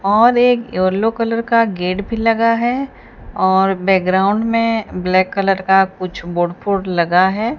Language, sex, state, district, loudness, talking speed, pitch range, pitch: Hindi, female, Odisha, Sambalpur, -16 LUFS, 160 wpm, 185-230 Hz, 195 Hz